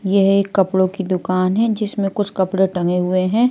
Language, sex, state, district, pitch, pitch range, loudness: Hindi, female, Maharashtra, Washim, 190 Hz, 185-200 Hz, -18 LUFS